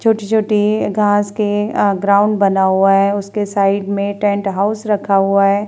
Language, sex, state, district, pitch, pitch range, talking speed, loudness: Hindi, female, Uttar Pradesh, Jalaun, 205 Hz, 200-210 Hz, 170 wpm, -15 LUFS